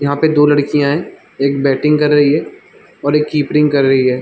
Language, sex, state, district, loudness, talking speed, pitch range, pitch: Hindi, male, Chhattisgarh, Balrampur, -13 LUFS, 230 wpm, 140-150 Hz, 145 Hz